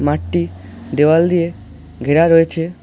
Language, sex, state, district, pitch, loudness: Bengali, male, West Bengal, Alipurduar, 145 Hz, -15 LUFS